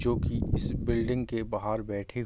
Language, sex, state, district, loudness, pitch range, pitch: Hindi, male, Bihar, Gopalganj, -30 LUFS, 105-120 Hz, 115 Hz